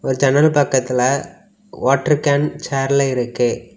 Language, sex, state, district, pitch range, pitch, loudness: Tamil, male, Tamil Nadu, Kanyakumari, 130-150 Hz, 140 Hz, -17 LUFS